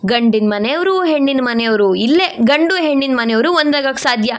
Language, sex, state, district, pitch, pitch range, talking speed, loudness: Kannada, female, Karnataka, Shimoga, 265 Hz, 225-305 Hz, 110 wpm, -14 LUFS